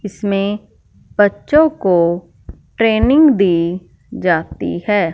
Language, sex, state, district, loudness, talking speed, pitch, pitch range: Hindi, female, Punjab, Fazilka, -15 LUFS, 80 wpm, 200 Hz, 175-220 Hz